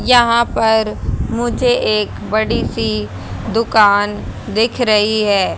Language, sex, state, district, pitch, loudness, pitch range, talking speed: Hindi, female, Haryana, Charkhi Dadri, 215 Hz, -15 LUFS, 200-230 Hz, 110 wpm